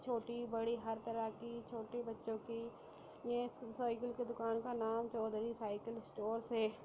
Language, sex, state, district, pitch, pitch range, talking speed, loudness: Hindi, female, Bihar, Sitamarhi, 230 Hz, 225-235 Hz, 160 wpm, -43 LUFS